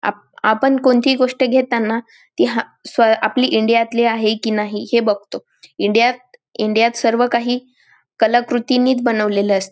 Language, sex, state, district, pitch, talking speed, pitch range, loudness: Marathi, female, Maharashtra, Dhule, 235 Hz, 155 wpm, 220-255 Hz, -16 LUFS